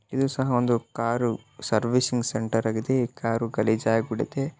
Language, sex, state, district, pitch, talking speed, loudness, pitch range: Kannada, male, Karnataka, Bellary, 115 Hz, 130 wpm, -26 LUFS, 110-125 Hz